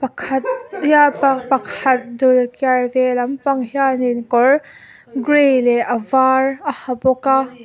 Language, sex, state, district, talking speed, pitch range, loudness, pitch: Mizo, female, Mizoram, Aizawl, 140 wpm, 250-275 Hz, -16 LUFS, 265 Hz